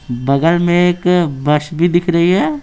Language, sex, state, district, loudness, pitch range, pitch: Hindi, male, Bihar, Patna, -14 LUFS, 150-175 Hz, 170 Hz